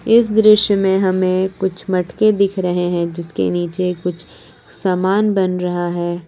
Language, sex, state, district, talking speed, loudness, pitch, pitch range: Hindi, female, Jharkhand, Palamu, 155 wpm, -17 LUFS, 185 Hz, 175-195 Hz